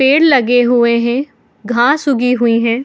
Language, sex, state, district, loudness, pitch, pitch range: Hindi, female, Bihar, Madhepura, -12 LUFS, 245 Hz, 235-270 Hz